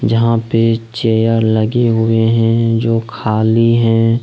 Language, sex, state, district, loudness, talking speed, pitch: Hindi, male, Jharkhand, Ranchi, -13 LUFS, 130 wpm, 115 Hz